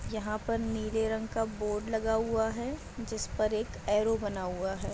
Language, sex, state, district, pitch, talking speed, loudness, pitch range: Hindi, female, Bihar, Madhepura, 220 Hz, 195 wpm, -32 LUFS, 210-225 Hz